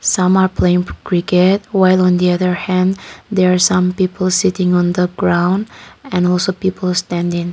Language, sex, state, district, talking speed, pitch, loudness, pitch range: English, female, Nagaland, Kohima, 165 wpm, 180 Hz, -15 LUFS, 180-190 Hz